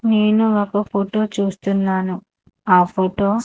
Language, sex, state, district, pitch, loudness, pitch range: Telugu, female, Andhra Pradesh, Manyam, 200 Hz, -18 LUFS, 190-215 Hz